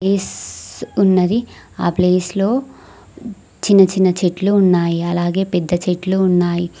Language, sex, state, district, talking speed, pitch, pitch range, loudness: Telugu, female, Telangana, Mahabubabad, 105 wpm, 180 Hz, 175-195 Hz, -16 LUFS